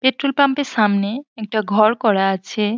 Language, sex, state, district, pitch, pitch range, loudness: Bengali, female, West Bengal, Paschim Medinipur, 215 Hz, 210-260 Hz, -18 LUFS